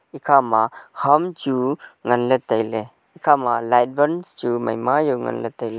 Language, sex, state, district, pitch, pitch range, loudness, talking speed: Wancho, male, Arunachal Pradesh, Longding, 125 Hz, 115-140 Hz, -20 LUFS, 135 wpm